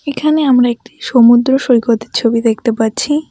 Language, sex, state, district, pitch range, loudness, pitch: Bengali, female, West Bengal, Alipurduar, 230-275 Hz, -12 LUFS, 245 Hz